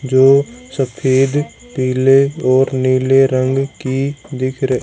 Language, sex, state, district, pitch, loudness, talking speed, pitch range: Hindi, male, Haryana, Jhajjar, 130 Hz, -15 LUFS, 110 wpm, 130-135 Hz